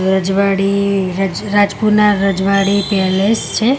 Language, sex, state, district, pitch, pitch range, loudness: Gujarati, female, Gujarat, Gandhinagar, 200 Hz, 195-205 Hz, -14 LUFS